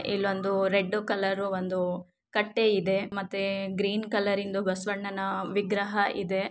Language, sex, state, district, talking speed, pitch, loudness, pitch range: Kannada, female, Karnataka, Shimoga, 120 wpm, 200 Hz, -28 LUFS, 195-205 Hz